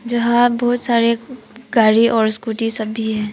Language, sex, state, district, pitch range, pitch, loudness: Hindi, female, Arunachal Pradesh, Papum Pare, 220-240 Hz, 230 Hz, -17 LUFS